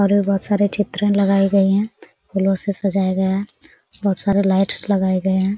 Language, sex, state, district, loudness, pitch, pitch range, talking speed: Hindi, female, Jharkhand, Sahebganj, -18 LUFS, 195 Hz, 195-200 Hz, 195 wpm